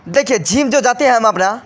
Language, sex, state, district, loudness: Hindi, male, Bihar, Kishanganj, -13 LUFS